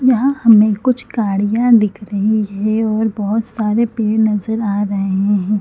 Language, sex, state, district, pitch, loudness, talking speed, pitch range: Hindi, female, Chhattisgarh, Bilaspur, 215 Hz, -15 LUFS, 160 wpm, 205-225 Hz